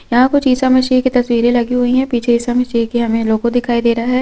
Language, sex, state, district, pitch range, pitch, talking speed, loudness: Hindi, female, Chhattisgarh, Korba, 235-255 Hz, 245 Hz, 270 wpm, -14 LUFS